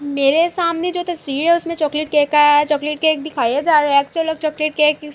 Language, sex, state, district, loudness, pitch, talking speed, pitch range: Urdu, female, Andhra Pradesh, Anantapur, -17 LUFS, 305 Hz, 245 wpm, 295-330 Hz